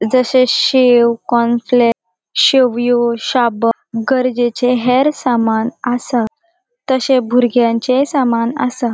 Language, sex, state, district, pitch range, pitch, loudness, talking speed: Konkani, female, Goa, North and South Goa, 235-255 Hz, 245 Hz, -14 LUFS, 85 wpm